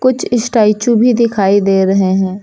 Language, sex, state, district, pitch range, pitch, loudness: Hindi, female, Uttar Pradesh, Lucknow, 195-240 Hz, 210 Hz, -12 LUFS